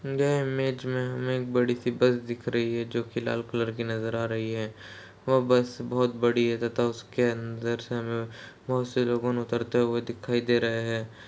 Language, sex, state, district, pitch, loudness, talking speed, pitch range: Hindi, male, Uttar Pradesh, Hamirpur, 120 Hz, -28 LUFS, 205 wpm, 115-125 Hz